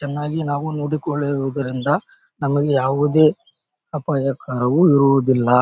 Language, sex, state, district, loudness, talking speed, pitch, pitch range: Kannada, male, Karnataka, Bellary, -19 LUFS, 85 wpm, 145 Hz, 135-150 Hz